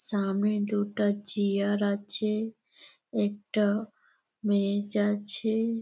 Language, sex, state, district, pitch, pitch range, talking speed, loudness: Bengali, female, West Bengal, Jalpaiguri, 205 Hz, 205-215 Hz, 80 wpm, -28 LUFS